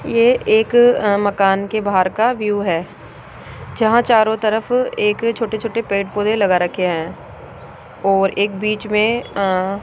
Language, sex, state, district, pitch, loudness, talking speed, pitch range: Hindi, female, Rajasthan, Jaipur, 210 Hz, -17 LUFS, 160 wpm, 195-225 Hz